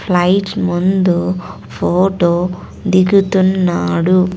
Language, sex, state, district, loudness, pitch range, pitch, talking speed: Telugu, female, Andhra Pradesh, Sri Satya Sai, -14 LUFS, 175-190 Hz, 185 Hz, 55 wpm